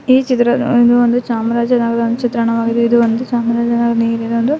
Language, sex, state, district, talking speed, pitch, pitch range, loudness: Kannada, male, Karnataka, Chamarajanagar, 115 wpm, 235 Hz, 230-245 Hz, -14 LUFS